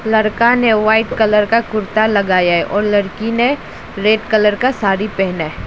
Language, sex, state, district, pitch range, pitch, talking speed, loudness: Hindi, female, Arunachal Pradesh, Lower Dibang Valley, 200-220 Hz, 215 Hz, 170 wpm, -14 LUFS